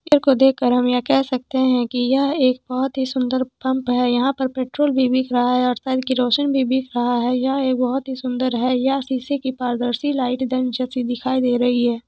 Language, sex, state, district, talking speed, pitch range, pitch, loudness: Hindi, female, Jharkhand, Jamtara, 215 wpm, 250-265 Hz, 255 Hz, -19 LUFS